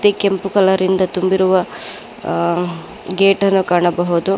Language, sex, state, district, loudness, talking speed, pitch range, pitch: Kannada, female, Karnataka, Bangalore, -16 LUFS, 95 wpm, 175-195 Hz, 190 Hz